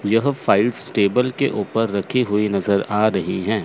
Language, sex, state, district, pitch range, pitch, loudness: Hindi, male, Chandigarh, Chandigarh, 100-125 Hz, 110 Hz, -19 LUFS